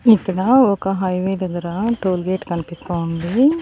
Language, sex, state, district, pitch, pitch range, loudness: Telugu, female, Andhra Pradesh, Annamaya, 185 Hz, 175-225 Hz, -19 LUFS